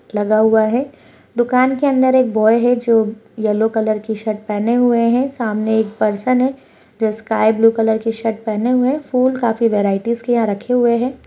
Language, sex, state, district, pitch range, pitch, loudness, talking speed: Hindi, female, West Bengal, Purulia, 220-245 Hz, 225 Hz, -16 LUFS, 200 wpm